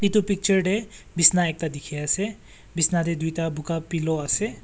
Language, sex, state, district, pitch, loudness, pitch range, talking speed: Nagamese, male, Nagaland, Kohima, 170 Hz, -23 LUFS, 160-200 Hz, 155 wpm